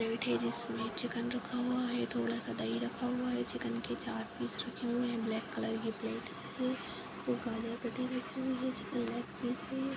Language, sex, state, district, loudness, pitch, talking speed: Hindi, female, Bihar, Jahanabad, -37 LUFS, 235 Hz, 210 wpm